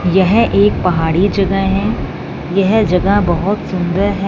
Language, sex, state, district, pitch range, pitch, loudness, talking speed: Hindi, female, Punjab, Fazilka, 180-205 Hz, 195 Hz, -14 LUFS, 140 wpm